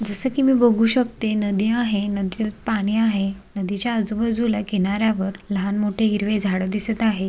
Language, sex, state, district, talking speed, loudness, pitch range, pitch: Marathi, female, Maharashtra, Sindhudurg, 155 wpm, -21 LUFS, 200-225 Hz, 210 Hz